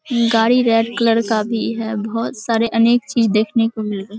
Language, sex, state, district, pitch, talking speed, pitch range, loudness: Hindi, female, Bihar, Araria, 230 Hz, 215 wpm, 220-230 Hz, -17 LUFS